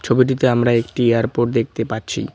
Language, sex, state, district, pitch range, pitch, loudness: Bengali, male, West Bengal, Cooch Behar, 115-125 Hz, 120 Hz, -18 LUFS